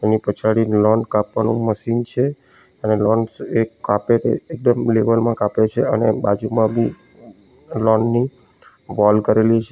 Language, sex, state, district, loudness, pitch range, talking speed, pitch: Gujarati, male, Gujarat, Valsad, -18 LUFS, 110-115 Hz, 150 wpm, 110 Hz